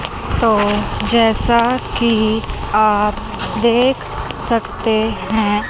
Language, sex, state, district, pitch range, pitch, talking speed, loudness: Hindi, female, Chandigarh, Chandigarh, 215-235 Hz, 220 Hz, 75 wpm, -16 LUFS